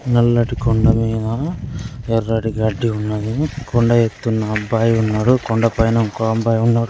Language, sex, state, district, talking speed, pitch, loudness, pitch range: Telugu, male, Andhra Pradesh, Guntur, 130 wpm, 115 Hz, -18 LUFS, 110-120 Hz